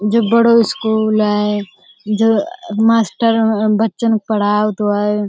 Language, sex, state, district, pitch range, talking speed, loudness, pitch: Hindi, female, Uttar Pradesh, Budaun, 210-225 Hz, 125 wpm, -15 LUFS, 215 Hz